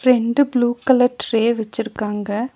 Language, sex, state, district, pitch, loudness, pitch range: Tamil, female, Tamil Nadu, Nilgiris, 235 Hz, -19 LUFS, 225-255 Hz